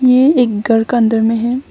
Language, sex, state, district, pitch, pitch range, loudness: Hindi, female, Arunachal Pradesh, Longding, 235 Hz, 225-250 Hz, -13 LUFS